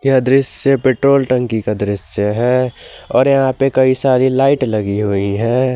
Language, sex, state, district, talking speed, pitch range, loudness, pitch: Hindi, male, Jharkhand, Garhwa, 165 wpm, 105-135 Hz, -14 LUFS, 130 Hz